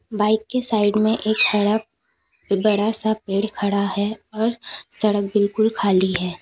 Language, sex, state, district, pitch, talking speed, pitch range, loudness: Hindi, female, Uttar Pradesh, Lalitpur, 210 Hz, 150 wpm, 200-220 Hz, -20 LUFS